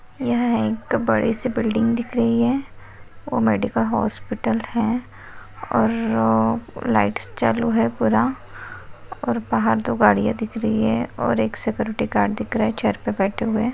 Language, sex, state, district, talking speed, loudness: Hindi, female, Maharashtra, Nagpur, 155 wpm, -21 LUFS